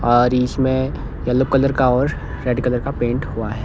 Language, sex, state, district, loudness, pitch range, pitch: Hindi, male, Himachal Pradesh, Shimla, -19 LUFS, 120-130 Hz, 125 Hz